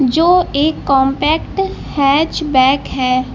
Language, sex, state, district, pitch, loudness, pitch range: Hindi, female, Uttar Pradesh, Lucknow, 280 Hz, -14 LUFS, 265-320 Hz